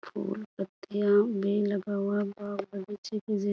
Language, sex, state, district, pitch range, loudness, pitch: Hindi, female, Bihar, Kishanganj, 200-205 Hz, -30 LUFS, 205 Hz